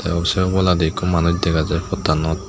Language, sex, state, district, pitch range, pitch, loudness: Chakma, male, Tripura, Unakoti, 80-95 Hz, 85 Hz, -19 LUFS